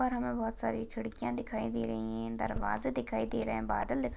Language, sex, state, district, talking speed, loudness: Hindi, female, Maharashtra, Sindhudurg, 215 wpm, -35 LUFS